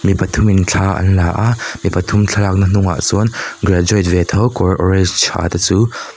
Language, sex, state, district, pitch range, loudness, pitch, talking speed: Mizo, male, Mizoram, Aizawl, 90-105 Hz, -14 LUFS, 95 Hz, 205 wpm